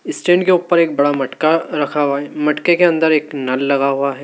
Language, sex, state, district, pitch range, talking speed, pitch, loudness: Hindi, male, Madhya Pradesh, Dhar, 140-170 Hz, 225 wpm, 150 Hz, -15 LUFS